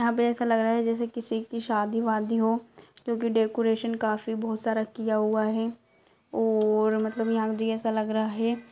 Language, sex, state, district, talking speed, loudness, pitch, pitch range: Hindi, female, Uttar Pradesh, Etah, 185 wpm, -27 LUFS, 225 Hz, 220-230 Hz